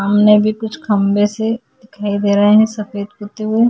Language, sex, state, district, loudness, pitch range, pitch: Hindi, female, Uttar Pradesh, Jyotiba Phule Nagar, -15 LUFS, 205-220 Hz, 210 Hz